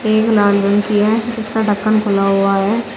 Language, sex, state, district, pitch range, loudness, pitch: Hindi, female, Uttar Pradesh, Shamli, 200-220 Hz, -15 LUFS, 210 Hz